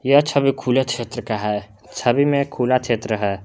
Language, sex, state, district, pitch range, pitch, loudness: Hindi, male, Jharkhand, Palamu, 105-135 Hz, 125 Hz, -20 LUFS